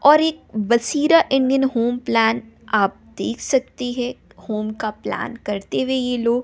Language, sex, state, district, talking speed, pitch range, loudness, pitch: Hindi, female, Bihar, West Champaran, 160 wpm, 215-265 Hz, -20 LUFS, 240 Hz